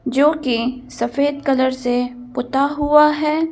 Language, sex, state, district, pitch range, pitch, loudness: Hindi, female, Madhya Pradesh, Bhopal, 245-295 Hz, 270 Hz, -18 LUFS